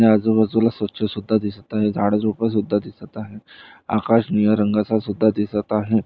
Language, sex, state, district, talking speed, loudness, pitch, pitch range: Marathi, male, Maharashtra, Nagpur, 150 wpm, -20 LUFS, 105 Hz, 105-110 Hz